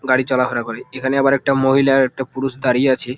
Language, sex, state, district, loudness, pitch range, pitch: Bengali, male, West Bengal, Jalpaiguri, -17 LUFS, 130-135 Hz, 130 Hz